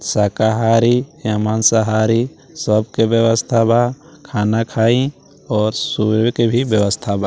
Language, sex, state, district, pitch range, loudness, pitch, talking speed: Bhojpuri, male, Bihar, Muzaffarpur, 110-120 Hz, -16 LUFS, 115 Hz, 125 wpm